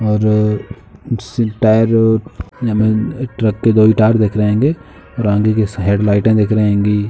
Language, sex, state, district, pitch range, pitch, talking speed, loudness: Hindi, male, Uttar Pradesh, Jalaun, 105-110 Hz, 110 Hz, 145 wpm, -14 LUFS